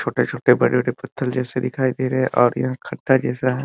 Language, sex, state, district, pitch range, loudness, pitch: Hindi, male, Bihar, Muzaffarpur, 125-130 Hz, -20 LUFS, 130 Hz